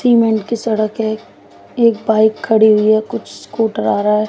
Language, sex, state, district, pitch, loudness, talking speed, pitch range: Hindi, female, Haryana, Jhajjar, 220 Hz, -15 LUFS, 195 wpm, 215-225 Hz